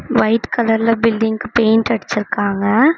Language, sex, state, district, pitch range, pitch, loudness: Tamil, female, Tamil Nadu, Namakkal, 215-230 Hz, 225 Hz, -16 LUFS